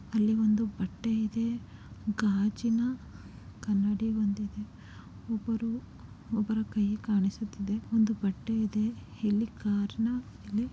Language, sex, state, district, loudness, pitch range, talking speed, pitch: Kannada, female, Karnataka, Chamarajanagar, -31 LUFS, 210-225 Hz, 80 wpm, 215 Hz